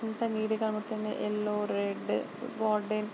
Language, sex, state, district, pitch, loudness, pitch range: Telugu, female, Andhra Pradesh, Srikakulam, 215 Hz, -32 LUFS, 210-220 Hz